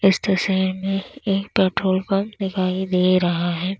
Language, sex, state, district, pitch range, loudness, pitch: Hindi, female, Uttar Pradesh, Lalitpur, 185-195 Hz, -21 LUFS, 190 Hz